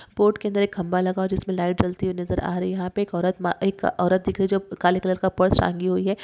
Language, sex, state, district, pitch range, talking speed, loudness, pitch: Hindi, female, Maharashtra, Nagpur, 180-195 Hz, 315 wpm, -23 LUFS, 185 Hz